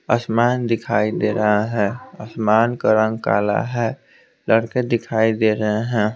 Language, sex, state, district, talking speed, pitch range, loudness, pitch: Hindi, male, Bihar, Patna, 145 wpm, 105-115 Hz, -19 LUFS, 110 Hz